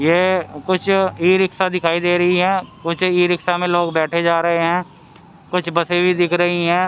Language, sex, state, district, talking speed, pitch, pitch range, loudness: Hindi, male, Haryana, Rohtak, 200 wpm, 175 Hz, 170-185 Hz, -17 LUFS